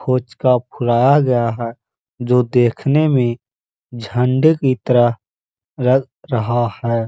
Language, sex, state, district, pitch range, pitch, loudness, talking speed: Hindi, male, Uttar Pradesh, Hamirpur, 120-130 Hz, 125 Hz, -16 LUFS, 110 wpm